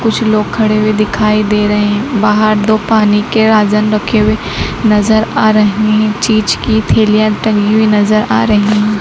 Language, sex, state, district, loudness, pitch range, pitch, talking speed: Hindi, female, Madhya Pradesh, Dhar, -11 LUFS, 210-220 Hz, 215 Hz, 180 wpm